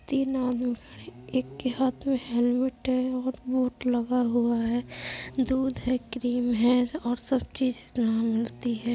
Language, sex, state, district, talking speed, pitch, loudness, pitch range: Hindi, female, Uttar Pradesh, Budaun, 165 wpm, 245 Hz, -27 LUFS, 235-260 Hz